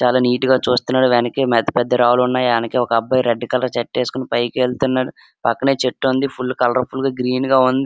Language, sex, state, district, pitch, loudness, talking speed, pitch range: Telugu, male, Andhra Pradesh, Srikakulam, 125 Hz, -17 LUFS, 200 wpm, 120-130 Hz